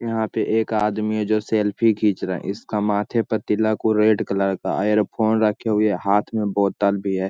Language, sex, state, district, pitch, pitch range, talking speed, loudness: Hindi, male, Bihar, Jamui, 105 Hz, 100-110 Hz, 215 wpm, -21 LUFS